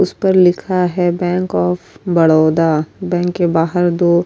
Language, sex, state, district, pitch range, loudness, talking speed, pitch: Urdu, female, Uttar Pradesh, Budaun, 165-180 Hz, -15 LUFS, 170 wpm, 175 Hz